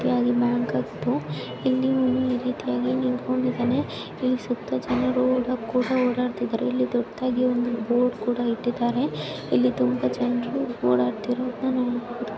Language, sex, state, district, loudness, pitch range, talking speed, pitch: Kannada, female, Karnataka, Gulbarga, -25 LUFS, 215-250 Hz, 120 wpm, 245 Hz